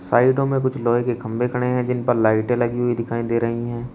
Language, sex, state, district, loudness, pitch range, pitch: Hindi, male, Uttar Pradesh, Shamli, -21 LUFS, 115-125 Hz, 120 Hz